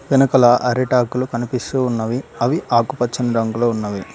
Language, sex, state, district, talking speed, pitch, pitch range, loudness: Telugu, male, Telangana, Mahabubabad, 115 wpm, 120 Hz, 115-130 Hz, -18 LUFS